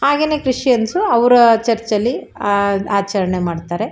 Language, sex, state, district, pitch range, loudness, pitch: Kannada, female, Karnataka, Shimoga, 200-250 Hz, -16 LUFS, 225 Hz